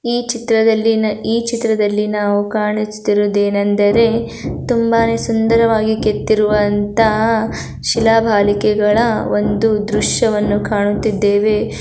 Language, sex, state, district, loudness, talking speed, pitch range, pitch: Kannada, female, Karnataka, Gulbarga, -15 LUFS, 75 wpm, 205-225 Hz, 215 Hz